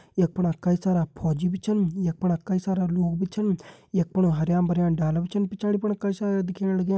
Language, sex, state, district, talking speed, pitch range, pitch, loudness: Hindi, male, Uttarakhand, Uttarkashi, 230 wpm, 175-195 Hz, 185 Hz, -25 LUFS